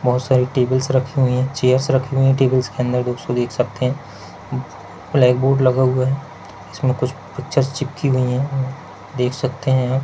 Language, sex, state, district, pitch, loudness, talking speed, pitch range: Hindi, male, Rajasthan, Churu, 130 Hz, -19 LUFS, 180 wpm, 125-135 Hz